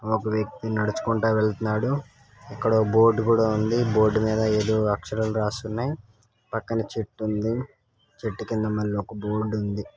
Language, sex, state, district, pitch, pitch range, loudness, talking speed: Telugu, male, Karnataka, Gulbarga, 110 Hz, 110-115 Hz, -25 LUFS, 145 wpm